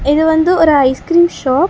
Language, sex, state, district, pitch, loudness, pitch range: Tamil, female, Tamil Nadu, Chennai, 320 Hz, -12 LUFS, 280-345 Hz